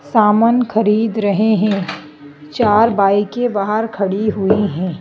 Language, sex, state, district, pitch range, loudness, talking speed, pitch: Hindi, female, Madhya Pradesh, Bhopal, 195-220 Hz, -15 LUFS, 145 wpm, 210 Hz